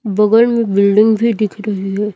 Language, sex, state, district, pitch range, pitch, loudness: Hindi, female, Chhattisgarh, Raipur, 205-220 Hz, 210 Hz, -13 LUFS